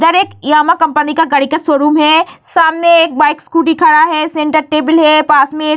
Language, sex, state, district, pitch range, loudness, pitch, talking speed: Hindi, female, Bihar, Vaishali, 300-330 Hz, -10 LUFS, 310 Hz, 230 wpm